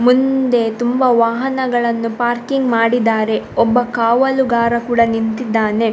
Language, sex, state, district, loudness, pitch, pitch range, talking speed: Kannada, female, Karnataka, Dakshina Kannada, -15 LUFS, 235 Hz, 230-245 Hz, 90 wpm